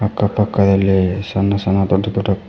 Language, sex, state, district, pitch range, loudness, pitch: Kannada, male, Karnataka, Koppal, 95-100 Hz, -16 LUFS, 100 Hz